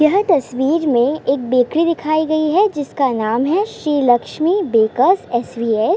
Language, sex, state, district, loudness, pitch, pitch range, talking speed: Hindi, female, Uttar Pradesh, Gorakhpur, -16 LUFS, 290 Hz, 245-330 Hz, 180 wpm